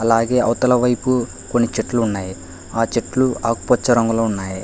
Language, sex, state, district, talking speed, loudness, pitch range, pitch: Telugu, male, Telangana, Hyderabad, 130 wpm, -18 LUFS, 110-125 Hz, 115 Hz